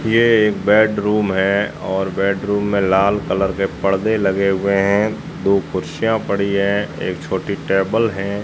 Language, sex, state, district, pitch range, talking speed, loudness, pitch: Hindi, male, Rajasthan, Jaisalmer, 95-105 Hz, 155 wpm, -18 LUFS, 100 Hz